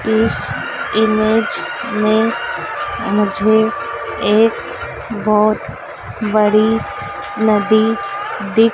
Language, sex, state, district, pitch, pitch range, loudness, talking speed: Hindi, female, Madhya Pradesh, Dhar, 220 Hz, 210-230 Hz, -16 LUFS, 60 wpm